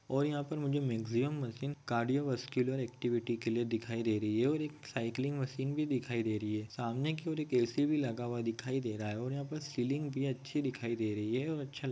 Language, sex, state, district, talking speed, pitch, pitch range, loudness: Hindi, male, Andhra Pradesh, Guntur, 230 wpm, 130 Hz, 115-145 Hz, -36 LUFS